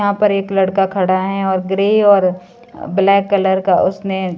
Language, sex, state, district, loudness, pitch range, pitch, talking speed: Hindi, female, Himachal Pradesh, Shimla, -15 LUFS, 190-200 Hz, 195 Hz, 180 wpm